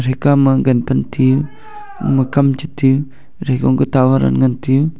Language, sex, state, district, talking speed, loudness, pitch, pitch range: Wancho, male, Arunachal Pradesh, Longding, 155 wpm, -15 LUFS, 135 Hz, 130-140 Hz